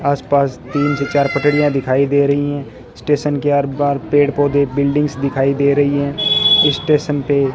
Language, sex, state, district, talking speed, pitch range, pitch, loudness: Hindi, male, Rajasthan, Bikaner, 185 wpm, 140-145 Hz, 140 Hz, -15 LUFS